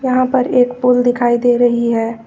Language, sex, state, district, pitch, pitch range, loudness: Hindi, female, Uttar Pradesh, Lucknow, 245 Hz, 240-250 Hz, -14 LUFS